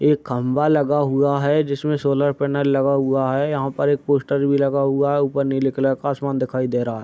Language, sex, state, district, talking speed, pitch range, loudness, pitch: Hindi, male, Bihar, Madhepura, 230 wpm, 135-145 Hz, -20 LUFS, 140 Hz